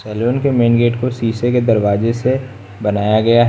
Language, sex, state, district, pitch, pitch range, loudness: Hindi, male, Uttar Pradesh, Lucknow, 115 Hz, 110-125 Hz, -15 LUFS